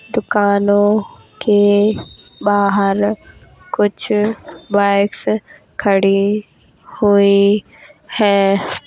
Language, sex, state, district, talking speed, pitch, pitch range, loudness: Hindi, female, Uttar Pradesh, Jalaun, 55 wpm, 205 Hz, 200-210 Hz, -15 LUFS